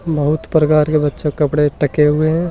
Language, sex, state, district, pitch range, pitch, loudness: Hindi, male, Rajasthan, Nagaur, 150-155 Hz, 150 Hz, -15 LUFS